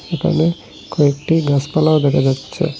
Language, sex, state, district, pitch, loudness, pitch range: Bengali, male, Assam, Hailakandi, 155 Hz, -16 LUFS, 140-165 Hz